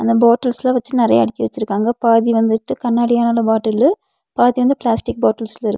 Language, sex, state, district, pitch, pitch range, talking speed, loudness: Tamil, female, Tamil Nadu, Nilgiris, 235 Hz, 220-245 Hz, 165 wpm, -16 LUFS